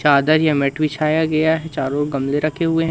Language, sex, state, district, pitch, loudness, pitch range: Hindi, male, Madhya Pradesh, Umaria, 155 Hz, -18 LUFS, 145-160 Hz